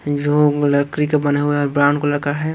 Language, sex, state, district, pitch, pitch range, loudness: Hindi, male, Punjab, Kapurthala, 145 Hz, 145-150 Hz, -17 LUFS